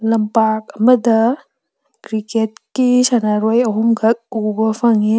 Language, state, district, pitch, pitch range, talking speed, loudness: Manipuri, Manipur, Imphal West, 225 Hz, 220-235 Hz, 90 wpm, -16 LUFS